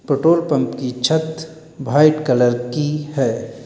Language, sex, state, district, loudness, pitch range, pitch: Hindi, male, Uttar Pradesh, Lalitpur, -17 LUFS, 130-160 Hz, 150 Hz